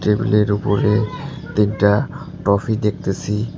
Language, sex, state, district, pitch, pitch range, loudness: Bengali, male, West Bengal, Cooch Behar, 105 Hz, 105-135 Hz, -19 LUFS